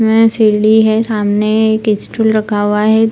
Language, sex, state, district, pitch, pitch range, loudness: Hindi, female, Bihar, Purnia, 220 Hz, 210-220 Hz, -12 LUFS